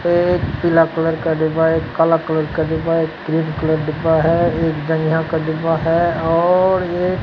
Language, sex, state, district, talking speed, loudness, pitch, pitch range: Hindi, male, Bihar, Katihar, 190 wpm, -17 LUFS, 165 Hz, 160-165 Hz